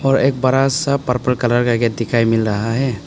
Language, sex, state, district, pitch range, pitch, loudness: Hindi, male, Arunachal Pradesh, Papum Pare, 115-135 Hz, 125 Hz, -17 LUFS